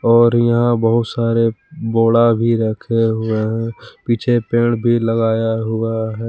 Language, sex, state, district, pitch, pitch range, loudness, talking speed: Hindi, male, Jharkhand, Palamu, 115 Hz, 115-120 Hz, -16 LUFS, 145 wpm